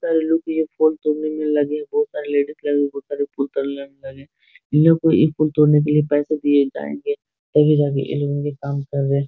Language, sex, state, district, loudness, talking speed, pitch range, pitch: Hindi, male, Bihar, Supaul, -19 LUFS, 245 wpm, 140-155 Hz, 150 Hz